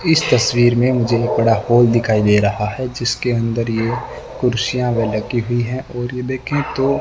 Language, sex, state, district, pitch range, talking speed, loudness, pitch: Hindi, male, Rajasthan, Bikaner, 115-125 Hz, 180 wpm, -17 LUFS, 120 Hz